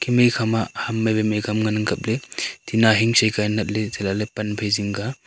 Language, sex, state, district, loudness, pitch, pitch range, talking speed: Wancho, male, Arunachal Pradesh, Longding, -21 LUFS, 110 Hz, 105-110 Hz, 305 wpm